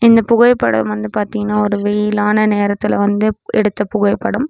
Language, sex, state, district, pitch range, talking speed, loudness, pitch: Tamil, female, Tamil Nadu, Namakkal, 205-215 Hz, 135 wpm, -15 LUFS, 210 Hz